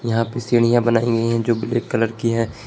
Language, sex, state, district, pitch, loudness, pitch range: Hindi, male, Jharkhand, Palamu, 115 Hz, -19 LUFS, 115-120 Hz